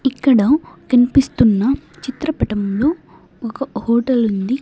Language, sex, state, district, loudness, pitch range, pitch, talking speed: Telugu, female, Andhra Pradesh, Sri Satya Sai, -17 LUFS, 230-275 Hz, 255 Hz, 80 wpm